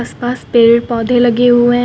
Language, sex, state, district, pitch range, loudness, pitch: Hindi, female, Uttar Pradesh, Lucknow, 235-245 Hz, -11 LUFS, 240 Hz